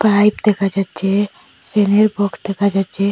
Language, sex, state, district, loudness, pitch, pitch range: Bengali, female, Assam, Hailakandi, -16 LUFS, 200 Hz, 195-210 Hz